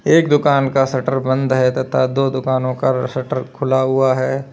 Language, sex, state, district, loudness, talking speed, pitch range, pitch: Hindi, male, Uttar Pradesh, Lalitpur, -17 LUFS, 185 wpm, 130-135 Hz, 130 Hz